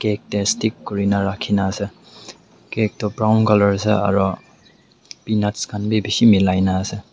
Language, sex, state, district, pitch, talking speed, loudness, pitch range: Nagamese, male, Nagaland, Dimapur, 105 Hz, 160 wpm, -19 LUFS, 100-110 Hz